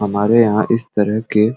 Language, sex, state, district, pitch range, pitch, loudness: Sadri, male, Chhattisgarh, Jashpur, 105-115 Hz, 110 Hz, -16 LUFS